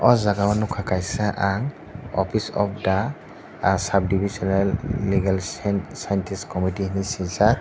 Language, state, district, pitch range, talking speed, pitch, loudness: Kokborok, Tripura, Dhalai, 95-105 Hz, 120 wpm, 100 Hz, -23 LUFS